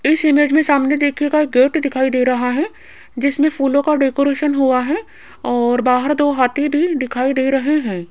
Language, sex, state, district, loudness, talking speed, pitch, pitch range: Hindi, female, Rajasthan, Jaipur, -16 LUFS, 190 wpm, 280 Hz, 255-295 Hz